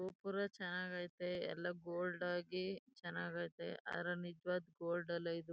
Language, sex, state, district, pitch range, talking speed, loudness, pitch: Kannada, female, Karnataka, Chamarajanagar, 175-180 Hz, 120 wpm, -44 LUFS, 175 Hz